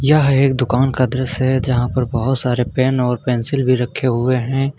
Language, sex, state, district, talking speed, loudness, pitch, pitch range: Hindi, male, Uttar Pradesh, Lucknow, 215 wpm, -17 LUFS, 130 Hz, 125-135 Hz